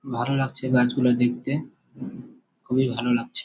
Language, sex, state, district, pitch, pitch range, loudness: Bengali, male, West Bengal, Malda, 125 Hz, 120-130 Hz, -24 LUFS